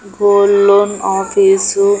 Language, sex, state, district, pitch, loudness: Telugu, female, Andhra Pradesh, Annamaya, 205 Hz, -12 LUFS